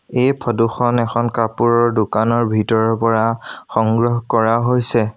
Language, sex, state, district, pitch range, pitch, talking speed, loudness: Assamese, male, Assam, Sonitpur, 115-120 Hz, 115 Hz, 130 wpm, -17 LUFS